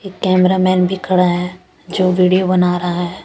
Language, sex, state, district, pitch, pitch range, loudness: Hindi, female, Chandigarh, Chandigarh, 185 Hz, 180-185 Hz, -15 LUFS